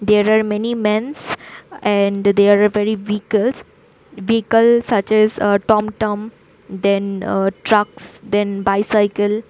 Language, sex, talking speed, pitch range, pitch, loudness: English, female, 105 wpm, 200-220 Hz, 210 Hz, -17 LUFS